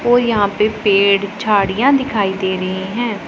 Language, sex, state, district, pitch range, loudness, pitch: Hindi, female, Punjab, Pathankot, 195-230 Hz, -15 LUFS, 205 Hz